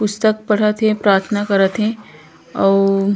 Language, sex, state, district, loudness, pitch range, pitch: Chhattisgarhi, female, Chhattisgarh, Korba, -16 LUFS, 195-215 Hz, 210 Hz